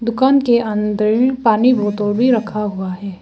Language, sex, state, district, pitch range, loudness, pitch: Hindi, female, Arunachal Pradesh, Lower Dibang Valley, 210-245 Hz, -16 LUFS, 220 Hz